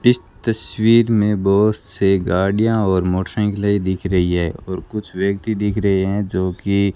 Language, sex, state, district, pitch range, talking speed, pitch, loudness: Hindi, male, Rajasthan, Bikaner, 95-105 Hz, 170 wpm, 100 Hz, -18 LUFS